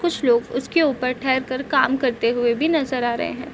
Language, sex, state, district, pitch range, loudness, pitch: Hindi, female, Bihar, Gopalganj, 245-275 Hz, -20 LUFS, 260 Hz